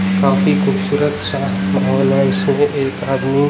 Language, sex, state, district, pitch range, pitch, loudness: Hindi, male, Chhattisgarh, Raipur, 95-145 Hz, 95 Hz, -15 LUFS